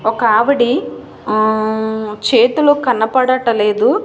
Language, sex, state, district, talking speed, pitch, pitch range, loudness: Telugu, female, Andhra Pradesh, Manyam, 75 wpm, 230 Hz, 215-255 Hz, -14 LUFS